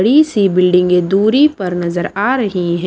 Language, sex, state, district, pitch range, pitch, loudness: Hindi, female, Maharashtra, Washim, 180-225 Hz, 190 Hz, -13 LUFS